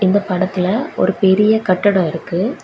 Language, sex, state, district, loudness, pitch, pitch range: Tamil, female, Tamil Nadu, Kanyakumari, -16 LUFS, 190 Hz, 185-205 Hz